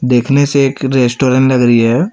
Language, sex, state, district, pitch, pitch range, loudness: Hindi, male, Chhattisgarh, Raipur, 130 Hz, 125-135 Hz, -11 LUFS